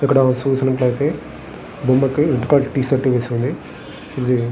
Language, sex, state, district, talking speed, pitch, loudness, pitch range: Telugu, male, Andhra Pradesh, Guntur, 145 wpm, 130 Hz, -18 LUFS, 125-135 Hz